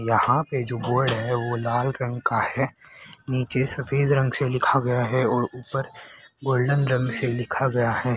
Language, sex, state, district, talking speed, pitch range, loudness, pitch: Hindi, male, Haryana, Rohtak, 185 wpm, 120-135 Hz, -21 LUFS, 130 Hz